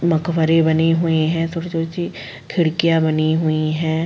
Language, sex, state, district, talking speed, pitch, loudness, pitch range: Hindi, female, Uttar Pradesh, Jalaun, 145 wpm, 165 Hz, -18 LUFS, 160-165 Hz